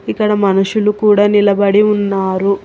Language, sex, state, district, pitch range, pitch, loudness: Telugu, female, Telangana, Hyderabad, 195-210 Hz, 205 Hz, -13 LUFS